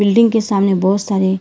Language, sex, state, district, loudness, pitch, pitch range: Hindi, female, Karnataka, Bangalore, -15 LUFS, 200 Hz, 190-215 Hz